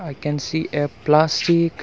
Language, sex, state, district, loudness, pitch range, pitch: English, male, Arunachal Pradesh, Longding, -20 LUFS, 145-160 Hz, 150 Hz